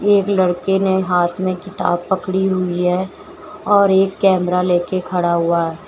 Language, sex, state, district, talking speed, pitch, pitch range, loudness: Hindi, female, Uttar Pradesh, Shamli, 165 wpm, 185 Hz, 180-195 Hz, -17 LUFS